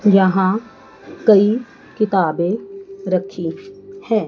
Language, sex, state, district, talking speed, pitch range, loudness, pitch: Hindi, female, Chandigarh, Chandigarh, 70 wpm, 190-220 Hz, -18 LUFS, 200 Hz